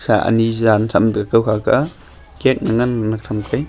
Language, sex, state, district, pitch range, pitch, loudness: Wancho, male, Arunachal Pradesh, Longding, 110-115 Hz, 115 Hz, -17 LUFS